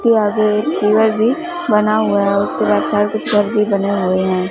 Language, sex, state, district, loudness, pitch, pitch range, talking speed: Hindi, female, Punjab, Fazilka, -15 LUFS, 210 Hz, 200-220 Hz, 200 wpm